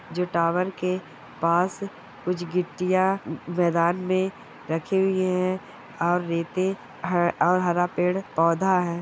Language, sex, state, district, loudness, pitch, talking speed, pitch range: Hindi, male, West Bengal, Malda, -25 LUFS, 180 Hz, 115 wpm, 175-185 Hz